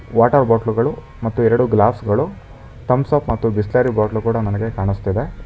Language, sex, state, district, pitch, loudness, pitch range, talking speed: Kannada, male, Karnataka, Bangalore, 115 Hz, -18 LUFS, 105-120 Hz, 155 wpm